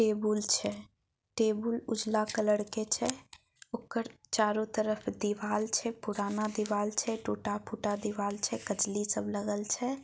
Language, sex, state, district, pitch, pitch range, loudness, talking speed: Maithili, female, Bihar, Samastipur, 215 Hz, 205-220 Hz, -32 LUFS, 130 wpm